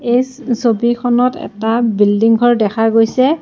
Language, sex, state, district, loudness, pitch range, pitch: Assamese, female, Assam, Sonitpur, -14 LUFS, 225-245 Hz, 235 Hz